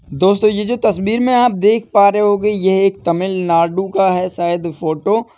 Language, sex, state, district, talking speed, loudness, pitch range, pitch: Hindi, male, Uttar Pradesh, Etah, 200 wpm, -15 LUFS, 180-210 Hz, 195 Hz